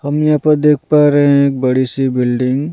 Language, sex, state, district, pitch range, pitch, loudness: Hindi, male, Punjab, Pathankot, 130-150 Hz, 140 Hz, -13 LUFS